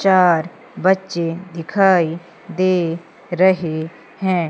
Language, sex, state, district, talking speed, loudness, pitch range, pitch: Hindi, female, Madhya Pradesh, Umaria, 80 wpm, -18 LUFS, 165-185 Hz, 175 Hz